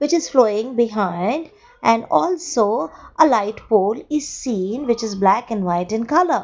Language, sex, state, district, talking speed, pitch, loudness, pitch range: English, female, Gujarat, Valsad, 150 wpm, 235 Hz, -19 LUFS, 210-305 Hz